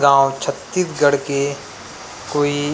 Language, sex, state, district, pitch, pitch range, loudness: Chhattisgarhi, male, Chhattisgarh, Rajnandgaon, 140 Hz, 135-145 Hz, -19 LUFS